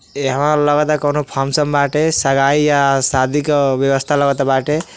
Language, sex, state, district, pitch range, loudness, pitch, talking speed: Bhojpuri, male, Uttar Pradesh, Deoria, 135-150 Hz, -15 LUFS, 145 Hz, 145 wpm